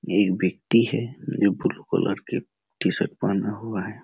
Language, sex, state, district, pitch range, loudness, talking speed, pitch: Hindi, male, Chhattisgarh, Raigarh, 100-120 Hz, -24 LUFS, 180 wpm, 105 Hz